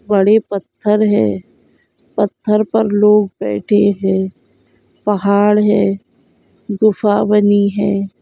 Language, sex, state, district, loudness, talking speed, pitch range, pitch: Hindi, female, Andhra Pradesh, Chittoor, -14 LUFS, 80 wpm, 195-210 Hz, 205 Hz